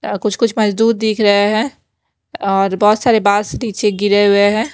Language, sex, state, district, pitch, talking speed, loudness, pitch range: Hindi, female, Maharashtra, Mumbai Suburban, 210 Hz, 190 wpm, -14 LUFS, 205-220 Hz